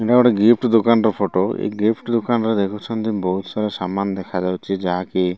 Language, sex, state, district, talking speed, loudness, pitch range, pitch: Odia, male, Odisha, Malkangiri, 180 wpm, -19 LUFS, 95-115 Hz, 105 Hz